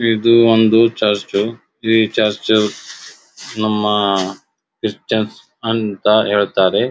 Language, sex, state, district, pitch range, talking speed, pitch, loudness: Kannada, male, Karnataka, Dharwad, 105-115 Hz, 80 wpm, 110 Hz, -16 LUFS